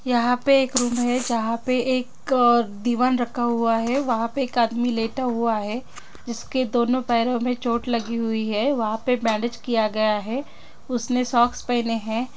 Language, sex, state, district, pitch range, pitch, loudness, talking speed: Hindi, female, Chhattisgarh, Sukma, 230-250 Hz, 240 Hz, -22 LUFS, 180 wpm